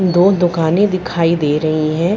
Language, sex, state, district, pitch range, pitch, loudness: Hindi, female, Chhattisgarh, Rajnandgaon, 160-185 Hz, 170 Hz, -15 LUFS